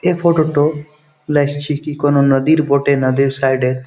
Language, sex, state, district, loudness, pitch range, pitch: Bengali, male, West Bengal, Jhargram, -15 LUFS, 135-150 Hz, 145 Hz